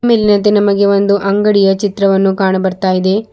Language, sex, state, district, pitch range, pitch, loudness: Kannada, female, Karnataka, Bidar, 195-205 Hz, 200 Hz, -12 LUFS